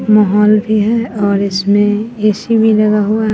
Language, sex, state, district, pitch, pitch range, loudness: Hindi, female, Bihar, West Champaran, 210 Hz, 205-220 Hz, -12 LUFS